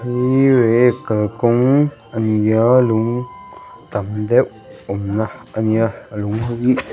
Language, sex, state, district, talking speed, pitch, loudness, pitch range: Mizo, male, Mizoram, Aizawl, 140 wpm, 115 Hz, -17 LUFS, 110-125 Hz